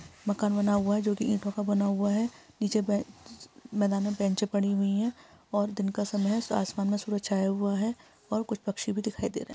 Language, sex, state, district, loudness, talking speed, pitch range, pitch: Hindi, female, Chhattisgarh, Sarguja, -29 LUFS, 240 wpm, 200-215 Hz, 205 Hz